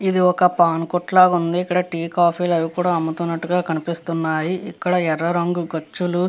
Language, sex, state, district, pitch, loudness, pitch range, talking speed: Telugu, female, Andhra Pradesh, Guntur, 175 Hz, -20 LUFS, 165-180 Hz, 170 wpm